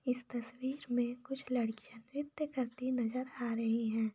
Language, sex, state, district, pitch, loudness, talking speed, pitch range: Hindi, female, Jharkhand, Sahebganj, 250 Hz, -38 LUFS, 160 wpm, 230-260 Hz